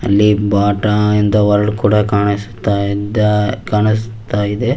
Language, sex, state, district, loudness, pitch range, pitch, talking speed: Kannada, male, Karnataka, Shimoga, -15 LUFS, 100-105 Hz, 105 Hz, 115 wpm